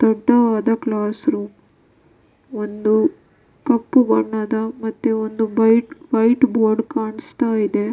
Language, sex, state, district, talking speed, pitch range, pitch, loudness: Kannada, female, Karnataka, Dakshina Kannada, 100 wpm, 220-245 Hz, 225 Hz, -18 LUFS